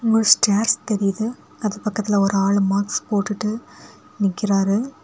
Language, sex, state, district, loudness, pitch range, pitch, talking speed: Tamil, female, Tamil Nadu, Kanyakumari, -20 LUFS, 200-220 Hz, 210 Hz, 120 wpm